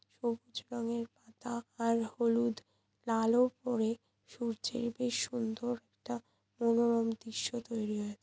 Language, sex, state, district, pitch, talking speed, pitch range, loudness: Bengali, female, West Bengal, Purulia, 235 Hz, 110 wpm, 225-240 Hz, -35 LUFS